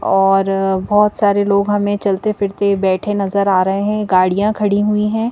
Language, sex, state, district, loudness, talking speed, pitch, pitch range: Hindi, female, Madhya Pradesh, Bhopal, -15 LUFS, 180 wpm, 200 Hz, 195-210 Hz